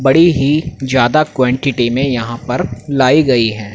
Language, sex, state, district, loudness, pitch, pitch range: Hindi, male, Haryana, Rohtak, -14 LUFS, 130 Hz, 120-145 Hz